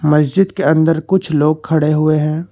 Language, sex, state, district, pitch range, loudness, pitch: Hindi, male, Karnataka, Bangalore, 150-175 Hz, -14 LUFS, 155 Hz